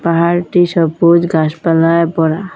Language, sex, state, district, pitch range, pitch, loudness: Bengali, female, Assam, Hailakandi, 165-175 Hz, 170 Hz, -12 LUFS